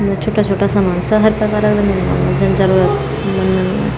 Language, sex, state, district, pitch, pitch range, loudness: Garhwali, female, Uttarakhand, Tehri Garhwal, 205 Hz, 195-210 Hz, -14 LUFS